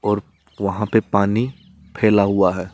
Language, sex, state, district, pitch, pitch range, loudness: Hindi, male, Rajasthan, Jaipur, 105 Hz, 100-115 Hz, -19 LUFS